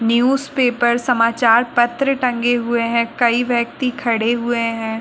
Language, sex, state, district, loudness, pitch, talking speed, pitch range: Hindi, female, Uttar Pradesh, Muzaffarnagar, -17 LUFS, 240 Hz, 120 wpm, 230-245 Hz